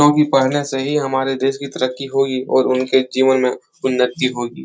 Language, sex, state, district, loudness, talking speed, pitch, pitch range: Hindi, male, Uttar Pradesh, Etah, -17 LUFS, 195 wpm, 130 Hz, 130-135 Hz